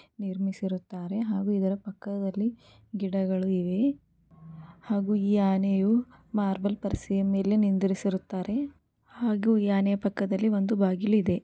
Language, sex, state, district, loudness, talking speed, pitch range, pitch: Kannada, female, Karnataka, Gulbarga, -28 LUFS, 105 wpm, 190-210 Hz, 200 Hz